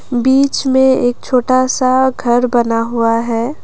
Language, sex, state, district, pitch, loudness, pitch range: Hindi, female, Assam, Kamrup Metropolitan, 250 Hz, -13 LUFS, 235-260 Hz